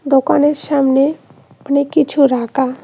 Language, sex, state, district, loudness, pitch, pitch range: Bengali, female, West Bengal, Cooch Behar, -14 LUFS, 280 Hz, 265-290 Hz